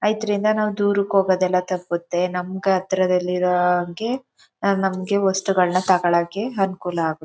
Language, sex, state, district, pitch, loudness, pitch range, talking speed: Kannada, female, Karnataka, Chamarajanagar, 185 Hz, -21 LUFS, 180-200 Hz, 100 wpm